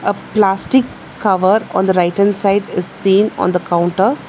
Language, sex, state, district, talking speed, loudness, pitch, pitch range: English, female, Telangana, Hyderabad, 180 wpm, -15 LUFS, 195 Hz, 185-205 Hz